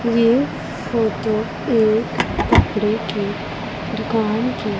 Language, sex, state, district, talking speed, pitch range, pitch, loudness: Hindi, female, Punjab, Pathankot, 90 wpm, 215-230 Hz, 220 Hz, -20 LUFS